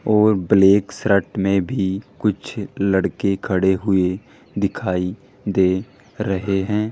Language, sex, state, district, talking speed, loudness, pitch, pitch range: Hindi, male, Rajasthan, Jaipur, 115 wpm, -20 LUFS, 100 Hz, 95-105 Hz